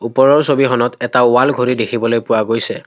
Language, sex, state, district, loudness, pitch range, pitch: Assamese, male, Assam, Kamrup Metropolitan, -14 LUFS, 115-130 Hz, 125 Hz